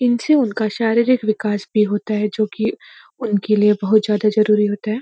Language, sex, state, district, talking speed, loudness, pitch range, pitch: Hindi, female, Uttarakhand, Uttarkashi, 190 wpm, -18 LUFS, 210-225 Hz, 215 Hz